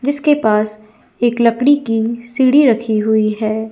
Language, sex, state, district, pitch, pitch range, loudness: Hindi, female, Chhattisgarh, Bilaspur, 230 Hz, 215-260 Hz, -15 LUFS